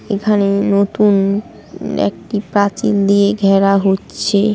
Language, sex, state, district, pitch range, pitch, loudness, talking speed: Bengali, female, West Bengal, Paschim Medinipur, 195-205 Hz, 200 Hz, -15 LUFS, 90 wpm